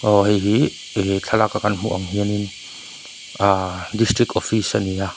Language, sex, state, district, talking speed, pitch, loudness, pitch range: Mizo, male, Mizoram, Aizawl, 160 wpm, 105 Hz, -20 LUFS, 95-105 Hz